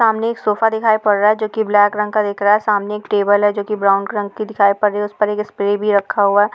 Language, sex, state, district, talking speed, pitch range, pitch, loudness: Hindi, female, Uttar Pradesh, Etah, 330 wpm, 205-215 Hz, 210 Hz, -16 LUFS